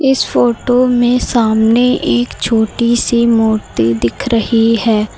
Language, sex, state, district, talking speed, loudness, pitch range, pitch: Hindi, female, Uttar Pradesh, Lucknow, 125 wpm, -13 LUFS, 220-245 Hz, 230 Hz